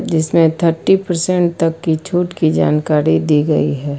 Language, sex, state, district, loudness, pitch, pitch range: Hindi, female, Uttar Pradesh, Lucknow, -15 LUFS, 165 Hz, 150-175 Hz